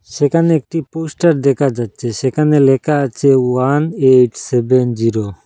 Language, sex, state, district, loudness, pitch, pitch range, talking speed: Bengali, male, Assam, Hailakandi, -14 LUFS, 135 Hz, 125-150 Hz, 145 wpm